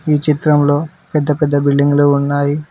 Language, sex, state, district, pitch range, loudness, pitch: Telugu, male, Telangana, Mahabubabad, 145-150 Hz, -14 LUFS, 145 Hz